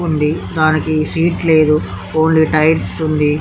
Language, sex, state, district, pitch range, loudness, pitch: Telugu, male, Andhra Pradesh, Chittoor, 150-160 Hz, -14 LUFS, 155 Hz